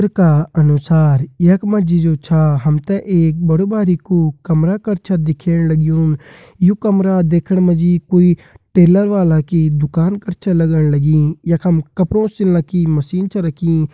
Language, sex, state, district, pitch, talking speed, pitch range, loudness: Kumaoni, male, Uttarakhand, Uttarkashi, 170 Hz, 150 wpm, 155-185 Hz, -14 LUFS